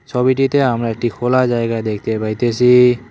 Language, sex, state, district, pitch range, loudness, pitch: Bengali, male, West Bengal, Cooch Behar, 115-125 Hz, -15 LUFS, 120 Hz